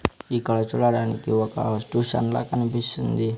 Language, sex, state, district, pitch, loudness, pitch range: Telugu, male, Andhra Pradesh, Sri Satya Sai, 115 Hz, -24 LUFS, 110-120 Hz